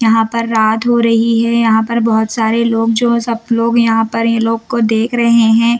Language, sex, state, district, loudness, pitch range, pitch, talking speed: Hindi, female, Bihar, Patna, -13 LUFS, 225-235 Hz, 230 Hz, 230 wpm